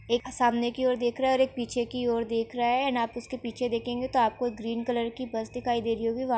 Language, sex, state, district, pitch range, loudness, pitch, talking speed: Hindi, female, Bihar, Bhagalpur, 235-250 Hz, -28 LUFS, 240 Hz, 310 wpm